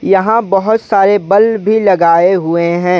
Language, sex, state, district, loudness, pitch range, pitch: Hindi, male, Jharkhand, Ranchi, -11 LUFS, 180-215 Hz, 195 Hz